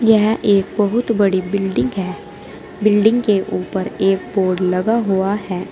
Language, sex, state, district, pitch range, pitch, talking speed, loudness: Hindi, female, Uttar Pradesh, Saharanpur, 190-215 Hz, 200 Hz, 145 wpm, -17 LUFS